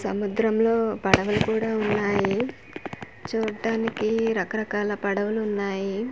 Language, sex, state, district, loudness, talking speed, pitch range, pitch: Telugu, female, Andhra Pradesh, Manyam, -25 LUFS, 90 wpm, 205-225 Hz, 215 Hz